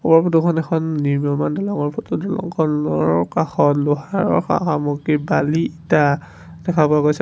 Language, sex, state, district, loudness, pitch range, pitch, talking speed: Assamese, male, Assam, Sonitpur, -19 LUFS, 140-165 Hz, 150 Hz, 135 wpm